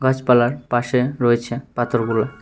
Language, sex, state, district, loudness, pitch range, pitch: Bengali, male, Tripura, West Tripura, -19 LUFS, 120-130 Hz, 120 Hz